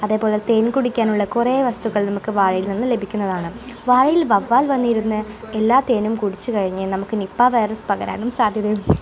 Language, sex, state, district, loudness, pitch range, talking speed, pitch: Malayalam, female, Kerala, Kozhikode, -19 LUFS, 205-240 Hz, 145 wpm, 220 Hz